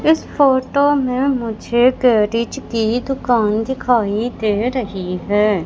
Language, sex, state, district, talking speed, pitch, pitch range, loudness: Hindi, female, Madhya Pradesh, Katni, 115 wpm, 240 Hz, 215-260 Hz, -17 LUFS